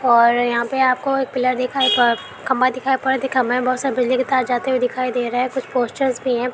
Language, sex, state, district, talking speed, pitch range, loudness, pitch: Hindi, male, Uttar Pradesh, Ghazipur, 255 wpm, 245-265 Hz, -19 LUFS, 255 Hz